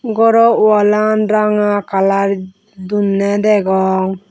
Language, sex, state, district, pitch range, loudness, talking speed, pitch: Chakma, female, Tripura, West Tripura, 195-215 Hz, -13 LUFS, 85 wpm, 205 Hz